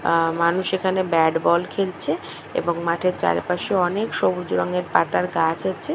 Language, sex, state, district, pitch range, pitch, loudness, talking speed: Bengali, female, West Bengal, Purulia, 165-185 Hz, 170 Hz, -22 LUFS, 160 wpm